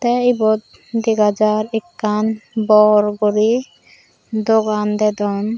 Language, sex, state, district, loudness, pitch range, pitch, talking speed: Chakma, female, Tripura, Dhalai, -17 LUFS, 210-225 Hz, 215 Hz, 95 wpm